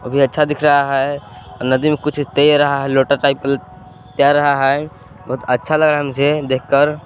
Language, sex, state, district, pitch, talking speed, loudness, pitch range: Hindi, male, Jharkhand, Palamu, 140 Hz, 205 wpm, -16 LUFS, 135-150 Hz